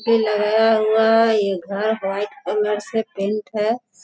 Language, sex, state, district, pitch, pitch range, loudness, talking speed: Hindi, female, Bihar, Sitamarhi, 215 Hz, 205-225 Hz, -19 LUFS, 165 wpm